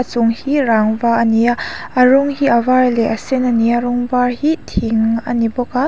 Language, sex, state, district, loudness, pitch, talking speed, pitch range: Mizo, female, Mizoram, Aizawl, -15 LUFS, 240 Hz, 255 wpm, 230-255 Hz